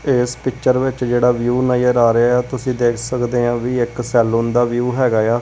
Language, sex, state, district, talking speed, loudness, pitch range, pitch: Punjabi, male, Punjab, Kapurthala, 210 wpm, -17 LUFS, 120-125 Hz, 120 Hz